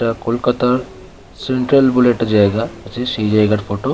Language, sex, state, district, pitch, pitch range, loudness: Bengali, male, West Bengal, Kolkata, 120 Hz, 105-125 Hz, -16 LUFS